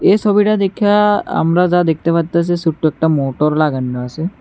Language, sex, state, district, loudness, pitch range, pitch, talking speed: Bengali, male, Tripura, West Tripura, -15 LUFS, 155-195 Hz, 170 Hz, 165 wpm